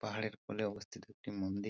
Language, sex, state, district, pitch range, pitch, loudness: Bengali, male, West Bengal, Purulia, 100-110 Hz, 105 Hz, -42 LUFS